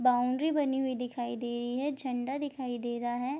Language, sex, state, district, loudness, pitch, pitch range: Hindi, female, Bihar, Bhagalpur, -32 LUFS, 250 Hz, 240-270 Hz